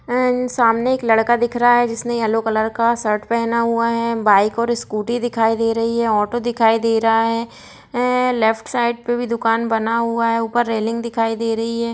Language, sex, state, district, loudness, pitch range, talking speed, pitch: Hindi, female, Chhattisgarh, Bilaspur, -18 LUFS, 225-240 Hz, 210 wpm, 230 Hz